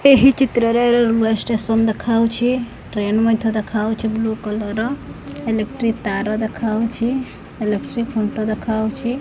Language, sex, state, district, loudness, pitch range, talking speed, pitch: Odia, female, Odisha, Khordha, -19 LUFS, 220-240 Hz, 115 wpm, 225 Hz